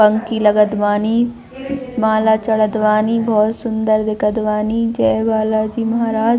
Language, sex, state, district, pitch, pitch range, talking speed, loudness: Hindi, female, Chhattisgarh, Bilaspur, 220 Hz, 215-230 Hz, 120 wpm, -16 LUFS